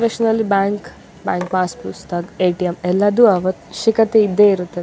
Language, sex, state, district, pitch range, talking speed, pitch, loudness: Kannada, female, Karnataka, Dakshina Kannada, 180-220 Hz, 135 wpm, 190 Hz, -17 LUFS